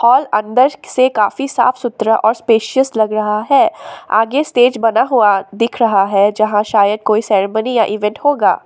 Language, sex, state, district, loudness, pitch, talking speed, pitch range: Hindi, female, Assam, Sonitpur, -14 LUFS, 225 Hz, 175 wpm, 210-255 Hz